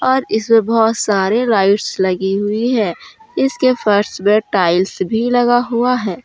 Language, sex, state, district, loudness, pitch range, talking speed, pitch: Hindi, female, Jharkhand, Deoghar, -15 LUFS, 200-245 Hz, 155 wpm, 225 Hz